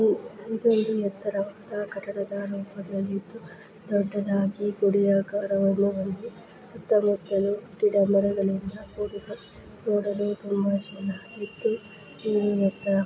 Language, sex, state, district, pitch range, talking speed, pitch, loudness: Kannada, female, Karnataka, Dharwad, 195-210 Hz, 70 wpm, 200 Hz, -27 LUFS